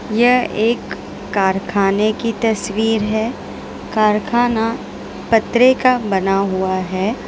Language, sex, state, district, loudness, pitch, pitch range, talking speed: Hindi, female, Gujarat, Valsad, -17 LUFS, 220 Hz, 195-230 Hz, 100 wpm